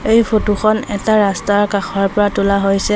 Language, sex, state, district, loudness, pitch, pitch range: Assamese, female, Assam, Sonitpur, -15 LUFS, 205 Hz, 200-215 Hz